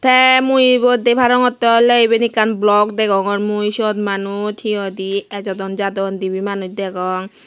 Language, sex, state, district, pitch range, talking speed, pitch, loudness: Chakma, female, Tripura, West Tripura, 195-235 Hz, 145 wpm, 210 Hz, -15 LUFS